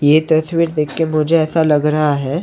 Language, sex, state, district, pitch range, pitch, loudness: Hindi, male, Maharashtra, Mumbai Suburban, 150-165 Hz, 155 Hz, -15 LUFS